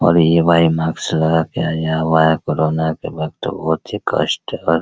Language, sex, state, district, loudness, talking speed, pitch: Hindi, male, Bihar, Araria, -17 LUFS, 210 wpm, 80 Hz